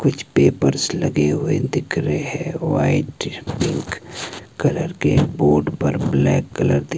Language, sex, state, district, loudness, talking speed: Hindi, male, Himachal Pradesh, Shimla, -20 LUFS, 135 wpm